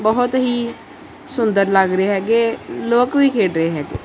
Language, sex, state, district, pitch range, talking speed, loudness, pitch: Punjabi, male, Punjab, Kapurthala, 195-245 Hz, 165 wpm, -17 LUFS, 225 Hz